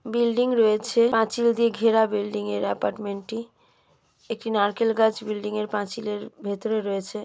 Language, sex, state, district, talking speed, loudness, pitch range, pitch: Bengali, female, West Bengal, Jalpaiguri, 140 wpm, -24 LUFS, 205-230 Hz, 220 Hz